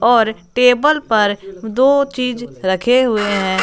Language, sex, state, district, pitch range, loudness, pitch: Hindi, female, Jharkhand, Garhwa, 205-250 Hz, -15 LUFS, 235 Hz